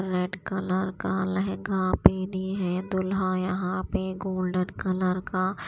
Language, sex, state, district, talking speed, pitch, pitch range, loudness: Hindi, female, Maharashtra, Washim, 140 wpm, 185 Hz, 185-190 Hz, -27 LUFS